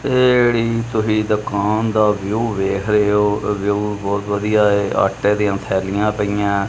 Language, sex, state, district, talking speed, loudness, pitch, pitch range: Punjabi, male, Punjab, Kapurthala, 155 wpm, -17 LUFS, 105 Hz, 100-110 Hz